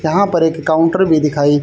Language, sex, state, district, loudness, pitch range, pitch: Hindi, male, Haryana, Charkhi Dadri, -14 LUFS, 150-170 Hz, 160 Hz